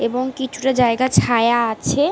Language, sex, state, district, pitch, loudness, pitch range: Bengali, female, West Bengal, Jalpaiguri, 250 Hz, -18 LUFS, 235-265 Hz